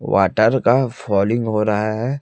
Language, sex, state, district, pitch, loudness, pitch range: Hindi, male, Chhattisgarh, Raipur, 110 Hz, -18 LUFS, 105-125 Hz